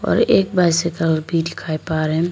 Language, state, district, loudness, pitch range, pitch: Hindi, Arunachal Pradesh, Lower Dibang Valley, -18 LUFS, 155-170 Hz, 165 Hz